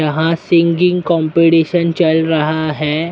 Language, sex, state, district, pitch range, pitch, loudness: Hindi, male, Maharashtra, Mumbai Suburban, 160-170 Hz, 165 Hz, -14 LUFS